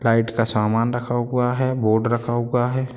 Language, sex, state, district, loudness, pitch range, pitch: Hindi, male, Bihar, Sitamarhi, -21 LUFS, 115-125 Hz, 120 Hz